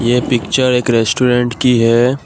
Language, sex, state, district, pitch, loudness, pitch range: Hindi, male, Assam, Kamrup Metropolitan, 125 Hz, -13 LUFS, 120-125 Hz